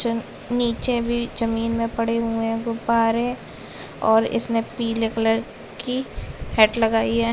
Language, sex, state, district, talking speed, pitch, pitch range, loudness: Hindi, female, Bihar, Gopalganj, 140 wpm, 230 Hz, 225-235 Hz, -22 LUFS